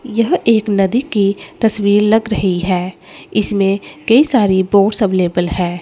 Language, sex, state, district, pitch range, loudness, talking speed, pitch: Hindi, female, Chandigarh, Chandigarh, 190-220 Hz, -14 LUFS, 145 wpm, 200 Hz